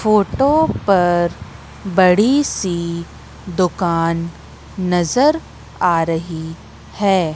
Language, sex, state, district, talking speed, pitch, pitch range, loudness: Hindi, female, Madhya Pradesh, Katni, 75 wpm, 180 Hz, 170-200 Hz, -17 LUFS